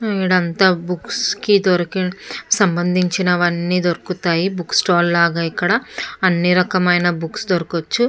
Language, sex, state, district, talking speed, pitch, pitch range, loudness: Telugu, female, Andhra Pradesh, Chittoor, 110 wpm, 180 Hz, 175-185 Hz, -17 LUFS